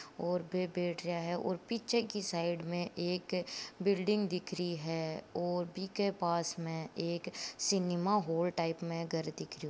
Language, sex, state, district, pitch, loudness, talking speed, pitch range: Marwari, female, Rajasthan, Nagaur, 175 Hz, -36 LUFS, 175 wpm, 170-185 Hz